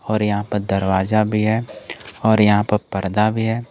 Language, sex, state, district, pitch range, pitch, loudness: Hindi, male, Jharkhand, Garhwa, 105-110 Hz, 105 Hz, -19 LUFS